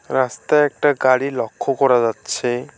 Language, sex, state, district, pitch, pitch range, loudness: Bengali, male, West Bengal, Alipurduar, 130 Hz, 120-145 Hz, -18 LUFS